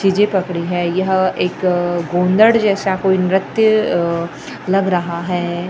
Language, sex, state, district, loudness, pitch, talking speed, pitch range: Hindi, female, Maharashtra, Gondia, -16 LUFS, 185 Hz, 125 wpm, 175-195 Hz